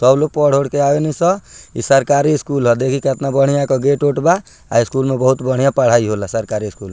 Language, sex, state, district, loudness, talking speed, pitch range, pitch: Bhojpuri, male, Bihar, Muzaffarpur, -15 LUFS, 235 wpm, 125-145 Hz, 135 Hz